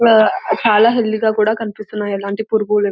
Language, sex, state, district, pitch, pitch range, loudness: Telugu, female, Telangana, Nalgonda, 215 Hz, 210-220 Hz, -16 LUFS